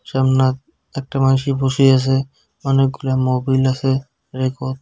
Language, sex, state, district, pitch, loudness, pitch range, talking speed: Bengali, male, West Bengal, Cooch Behar, 135 Hz, -17 LUFS, 130-135 Hz, 100 wpm